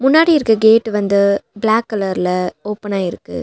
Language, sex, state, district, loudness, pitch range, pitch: Tamil, female, Tamil Nadu, Nilgiris, -15 LUFS, 200-225 Hz, 210 Hz